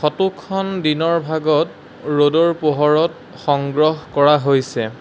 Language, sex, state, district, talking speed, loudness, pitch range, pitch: Assamese, male, Assam, Sonitpur, 95 wpm, -17 LUFS, 145-165 Hz, 155 Hz